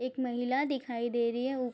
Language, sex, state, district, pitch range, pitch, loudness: Hindi, female, Bihar, Madhepura, 240-260 Hz, 250 Hz, -32 LUFS